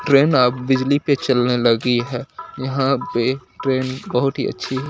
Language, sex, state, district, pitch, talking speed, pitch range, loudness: Hindi, male, Bihar, Kaimur, 130 Hz, 170 wpm, 125-140 Hz, -19 LUFS